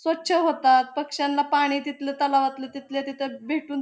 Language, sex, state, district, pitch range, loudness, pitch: Marathi, female, Maharashtra, Pune, 275-295 Hz, -24 LUFS, 285 Hz